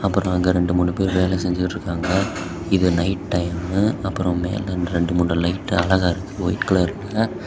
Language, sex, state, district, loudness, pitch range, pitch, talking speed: Tamil, male, Tamil Nadu, Kanyakumari, -21 LUFS, 90-95 Hz, 90 Hz, 175 wpm